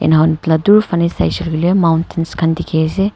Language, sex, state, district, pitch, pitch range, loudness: Nagamese, female, Nagaland, Kohima, 165 Hz, 160-175 Hz, -14 LUFS